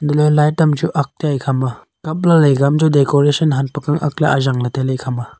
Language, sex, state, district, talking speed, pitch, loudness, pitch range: Wancho, male, Arunachal Pradesh, Longding, 200 wpm, 145 Hz, -15 LUFS, 135-150 Hz